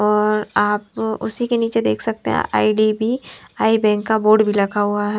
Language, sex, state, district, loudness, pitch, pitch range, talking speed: Hindi, female, Himachal Pradesh, Shimla, -18 LUFS, 210 Hz, 205-220 Hz, 195 wpm